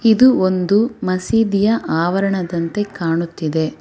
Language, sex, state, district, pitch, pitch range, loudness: Kannada, female, Karnataka, Bangalore, 190 Hz, 170-220 Hz, -17 LUFS